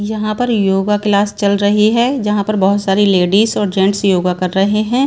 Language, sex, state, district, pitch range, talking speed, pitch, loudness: Hindi, female, Bihar, Patna, 195-215 Hz, 215 wpm, 205 Hz, -14 LUFS